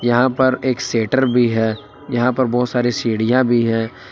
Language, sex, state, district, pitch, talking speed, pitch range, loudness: Hindi, male, Jharkhand, Palamu, 120 Hz, 190 wpm, 115-130 Hz, -17 LUFS